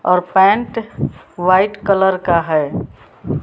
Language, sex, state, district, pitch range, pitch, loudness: Hindi, female, Bihar, West Champaran, 175-200 Hz, 190 Hz, -16 LUFS